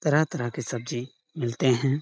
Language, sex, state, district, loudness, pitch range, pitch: Hindi, male, Chhattisgarh, Sarguja, -27 LUFS, 120-150 Hz, 130 Hz